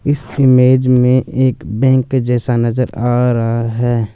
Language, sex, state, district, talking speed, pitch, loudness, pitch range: Hindi, male, Punjab, Fazilka, 145 wpm, 125 Hz, -14 LUFS, 120-130 Hz